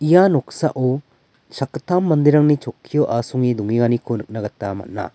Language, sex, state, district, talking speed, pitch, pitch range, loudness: Garo, male, Meghalaya, West Garo Hills, 115 wpm, 130 Hz, 115-150 Hz, -19 LUFS